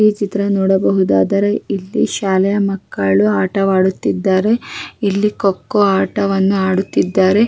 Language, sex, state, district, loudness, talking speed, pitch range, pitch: Kannada, female, Karnataka, Raichur, -15 LUFS, 90 wpm, 190-205 Hz, 195 Hz